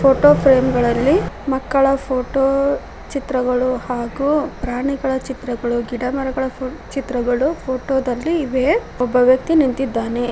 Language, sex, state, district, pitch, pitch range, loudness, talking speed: Kannada, female, Karnataka, Koppal, 260 Hz, 250-275 Hz, -18 LUFS, 100 wpm